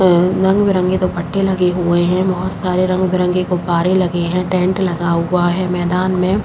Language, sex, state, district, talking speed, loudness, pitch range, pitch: Hindi, female, Uttar Pradesh, Jalaun, 175 wpm, -16 LUFS, 175-185 Hz, 180 Hz